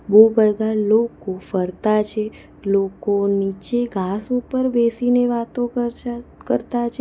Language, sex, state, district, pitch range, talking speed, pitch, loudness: Gujarati, female, Gujarat, Valsad, 200-240 Hz, 120 wpm, 220 Hz, -20 LUFS